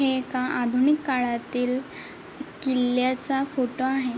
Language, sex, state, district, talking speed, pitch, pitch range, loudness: Marathi, female, Maharashtra, Chandrapur, 100 wpm, 255 Hz, 250-270 Hz, -25 LUFS